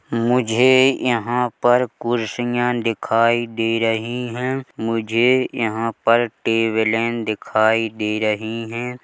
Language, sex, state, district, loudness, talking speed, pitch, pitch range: Hindi, male, Chhattisgarh, Bilaspur, -19 LUFS, 115 wpm, 115 Hz, 115-120 Hz